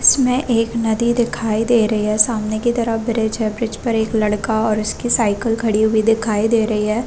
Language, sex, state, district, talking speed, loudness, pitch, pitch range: Hindi, female, Chhattisgarh, Raigarh, 220 wpm, -17 LUFS, 225 Hz, 215-235 Hz